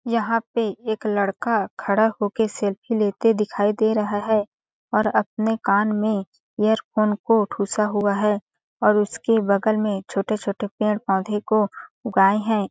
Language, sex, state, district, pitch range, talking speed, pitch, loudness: Hindi, female, Chhattisgarh, Balrampur, 205-220 Hz, 140 wpm, 210 Hz, -22 LUFS